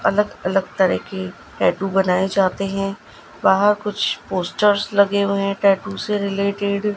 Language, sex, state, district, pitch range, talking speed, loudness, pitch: Hindi, female, Gujarat, Gandhinagar, 195-205 Hz, 155 wpm, -19 LUFS, 200 Hz